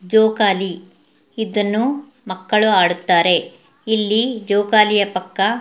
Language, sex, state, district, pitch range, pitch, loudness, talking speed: Kannada, female, Karnataka, Mysore, 185-220 Hz, 210 Hz, -17 LUFS, 75 wpm